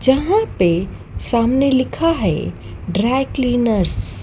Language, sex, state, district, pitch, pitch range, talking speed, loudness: Hindi, female, Madhya Pradesh, Dhar, 250 Hz, 195-270 Hz, 115 wpm, -17 LUFS